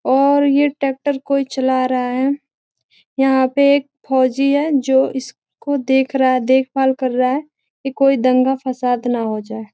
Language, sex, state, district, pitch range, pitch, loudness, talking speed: Hindi, female, Bihar, Gopalganj, 255-275 Hz, 265 Hz, -17 LUFS, 170 wpm